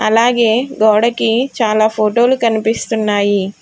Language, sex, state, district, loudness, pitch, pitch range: Telugu, female, Telangana, Hyderabad, -14 LUFS, 225 Hz, 215-235 Hz